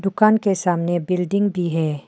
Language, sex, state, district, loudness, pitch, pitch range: Hindi, female, Arunachal Pradesh, Papum Pare, -20 LUFS, 180 Hz, 170-200 Hz